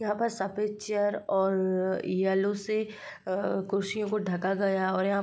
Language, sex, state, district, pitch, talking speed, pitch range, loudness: Hindi, female, Uttar Pradesh, Jyotiba Phule Nagar, 200 Hz, 185 wpm, 190-210 Hz, -29 LUFS